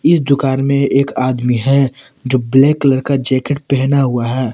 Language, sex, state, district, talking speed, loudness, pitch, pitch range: Hindi, male, Jharkhand, Palamu, 185 wpm, -14 LUFS, 135 Hz, 130-140 Hz